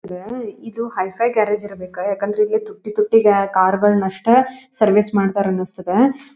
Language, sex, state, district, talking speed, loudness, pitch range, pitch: Kannada, female, Karnataka, Dharwad, 140 wpm, -18 LUFS, 195-235 Hz, 210 Hz